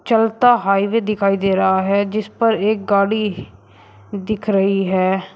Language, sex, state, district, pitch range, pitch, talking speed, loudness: Hindi, male, Uttar Pradesh, Shamli, 190-215 Hz, 200 Hz, 145 wpm, -17 LUFS